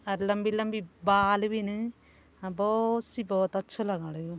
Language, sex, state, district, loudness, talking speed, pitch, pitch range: Garhwali, female, Uttarakhand, Uttarkashi, -29 LUFS, 110 wpm, 205 Hz, 195-220 Hz